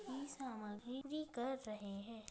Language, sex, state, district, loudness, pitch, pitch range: Hindi, female, Bihar, Saharsa, -47 LUFS, 245 Hz, 215-265 Hz